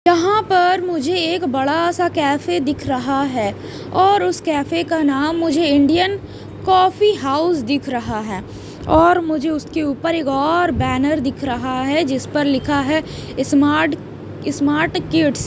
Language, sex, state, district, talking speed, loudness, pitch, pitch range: Hindi, female, Himachal Pradesh, Shimla, 155 wpm, -17 LUFS, 310 Hz, 280-345 Hz